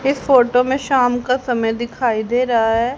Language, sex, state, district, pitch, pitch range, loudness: Hindi, female, Haryana, Jhajjar, 245 Hz, 235-260 Hz, -17 LUFS